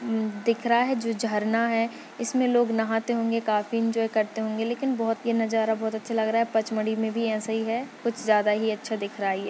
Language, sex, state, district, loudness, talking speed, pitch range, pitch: Hindi, male, Maharashtra, Dhule, -26 LUFS, 240 wpm, 220-230 Hz, 225 Hz